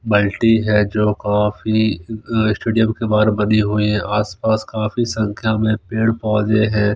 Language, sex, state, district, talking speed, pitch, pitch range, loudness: Hindi, male, Punjab, Fazilka, 145 wpm, 110 Hz, 105-110 Hz, -17 LUFS